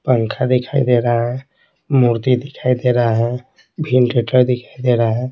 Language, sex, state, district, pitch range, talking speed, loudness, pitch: Hindi, male, Bihar, Patna, 120-130 Hz, 160 wpm, -16 LUFS, 125 Hz